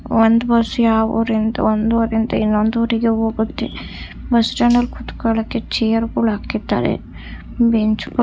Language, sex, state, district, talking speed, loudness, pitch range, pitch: Kannada, female, Karnataka, Raichur, 115 wpm, -17 LUFS, 220-235 Hz, 225 Hz